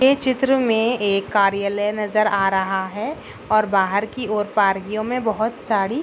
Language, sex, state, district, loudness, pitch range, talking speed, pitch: Hindi, female, Maharashtra, Pune, -20 LUFS, 200-230 Hz, 150 wpm, 215 Hz